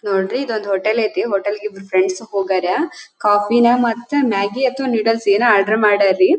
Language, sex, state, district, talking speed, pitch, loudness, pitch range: Kannada, female, Karnataka, Dharwad, 150 wpm, 215 Hz, -17 LUFS, 200-240 Hz